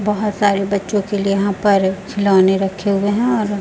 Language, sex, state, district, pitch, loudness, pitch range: Hindi, female, Chhattisgarh, Raipur, 200 Hz, -17 LUFS, 195-205 Hz